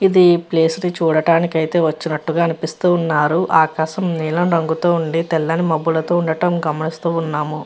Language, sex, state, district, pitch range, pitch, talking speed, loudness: Telugu, female, Andhra Pradesh, Visakhapatnam, 160-170 Hz, 165 Hz, 135 wpm, -17 LUFS